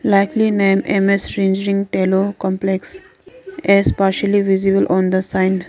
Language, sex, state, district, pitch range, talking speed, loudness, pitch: English, female, Arunachal Pradesh, Lower Dibang Valley, 190-200 Hz, 125 wpm, -16 LUFS, 195 Hz